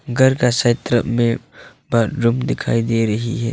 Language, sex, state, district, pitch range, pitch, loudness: Hindi, male, Arunachal Pradesh, Longding, 115-125 Hz, 120 Hz, -18 LUFS